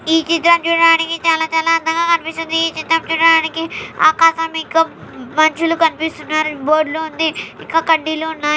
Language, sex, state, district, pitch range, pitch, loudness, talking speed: Telugu, female, Andhra Pradesh, Anantapur, 315-330 Hz, 325 Hz, -15 LUFS, 140 wpm